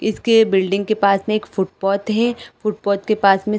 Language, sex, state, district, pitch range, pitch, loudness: Hindi, female, Chhattisgarh, Bilaspur, 195-215 Hz, 210 Hz, -18 LUFS